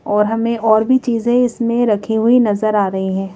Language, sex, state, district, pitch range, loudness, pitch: Hindi, female, Madhya Pradesh, Bhopal, 210-235 Hz, -15 LUFS, 220 Hz